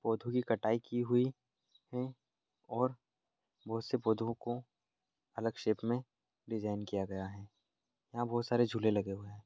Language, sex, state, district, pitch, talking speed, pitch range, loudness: Angika, male, Bihar, Madhepura, 115 Hz, 160 wpm, 110-120 Hz, -37 LUFS